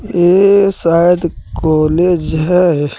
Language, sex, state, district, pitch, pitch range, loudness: Hindi, male, Jharkhand, Deoghar, 175 Hz, 160-180 Hz, -12 LUFS